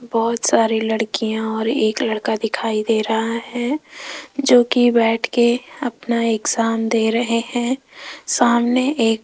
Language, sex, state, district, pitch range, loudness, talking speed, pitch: Hindi, female, Rajasthan, Jaipur, 225-245 Hz, -18 LUFS, 145 wpm, 230 Hz